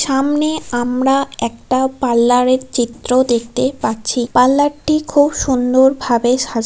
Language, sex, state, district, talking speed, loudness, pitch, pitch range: Bengali, female, West Bengal, Paschim Medinipur, 125 wpm, -15 LUFS, 255 Hz, 240-275 Hz